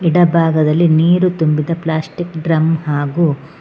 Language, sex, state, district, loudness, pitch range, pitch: Kannada, female, Karnataka, Bangalore, -15 LUFS, 155-170 Hz, 160 Hz